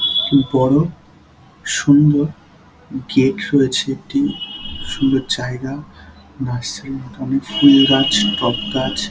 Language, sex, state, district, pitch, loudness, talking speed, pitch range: Bengali, male, West Bengal, Dakshin Dinajpur, 135 Hz, -16 LUFS, 110 wpm, 130-145 Hz